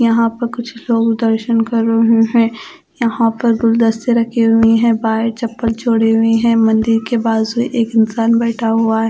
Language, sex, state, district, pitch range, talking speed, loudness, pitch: Hindi, female, Odisha, Khordha, 225-235 Hz, 185 wpm, -14 LUFS, 230 Hz